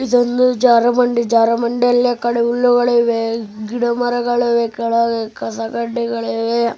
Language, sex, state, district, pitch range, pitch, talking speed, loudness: Kannada, male, Karnataka, Bellary, 230-245 Hz, 235 Hz, 90 wpm, -16 LUFS